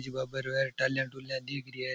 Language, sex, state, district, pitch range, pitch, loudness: Rajasthani, male, Rajasthan, Churu, 130-135 Hz, 130 Hz, -33 LUFS